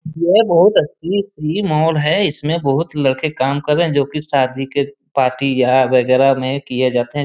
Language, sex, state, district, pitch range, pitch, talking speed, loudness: Hindi, male, Jharkhand, Jamtara, 130-155 Hz, 140 Hz, 205 wpm, -16 LUFS